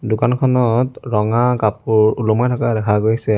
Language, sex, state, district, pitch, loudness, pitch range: Assamese, male, Assam, Sonitpur, 115 Hz, -16 LUFS, 110-125 Hz